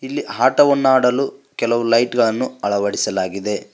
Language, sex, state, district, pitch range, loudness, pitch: Kannada, male, Karnataka, Koppal, 105-130 Hz, -18 LUFS, 120 Hz